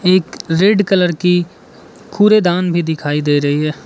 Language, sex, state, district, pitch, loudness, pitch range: Hindi, male, Arunachal Pradesh, Lower Dibang Valley, 175 Hz, -14 LUFS, 155-185 Hz